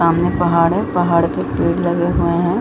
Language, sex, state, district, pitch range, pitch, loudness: Hindi, female, Jharkhand, Sahebganj, 170-175 Hz, 170 Hz, -16 LUFS